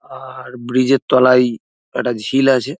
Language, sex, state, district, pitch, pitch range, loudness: Bengali, male, West Bengal, Dakshin Dinajpur, 130 Hz, 125-135 Hz, -15 LUFS